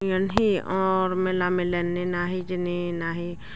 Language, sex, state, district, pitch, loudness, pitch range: Chakma, female, Tripura, Dhalai, 180 Hz, -25 LUFS, 175-185 Hz